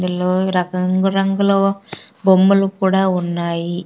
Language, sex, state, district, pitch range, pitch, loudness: Telugu, female, Andhra Pradesh, Sri Satya Sai, 180-195 Hz, 190 Hz, -16 LUFS